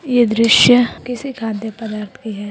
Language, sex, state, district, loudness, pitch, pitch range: Hindi, female, Chhattisgarh, Raigarh, -15 LUFS, 230 Hz, 220-245 Hz